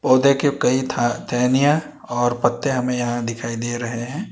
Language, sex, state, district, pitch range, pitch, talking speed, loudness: Hindi, male, Karnataka, Bangalore, 120-140 Hz, 125 Hz, 180 wpm, -20 LUFS